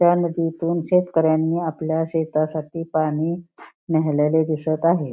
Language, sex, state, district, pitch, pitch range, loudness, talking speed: Marathi, female, Maharashtra, Pune, 160 Hz, 155-170 Hz, -21 LUFS, 105 wpm